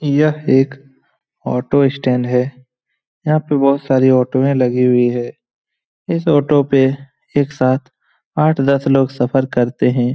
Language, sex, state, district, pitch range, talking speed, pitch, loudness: Hindi, male, Bihar, Lakhisarai, 125-140 Hz, 140 wpm, 135 Hz, -15 LUFS